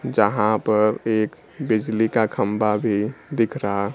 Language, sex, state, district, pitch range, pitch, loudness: Hindi, male, Bihar, Kaimur, 105-115 Hz, 110 Hz, -21 LUFS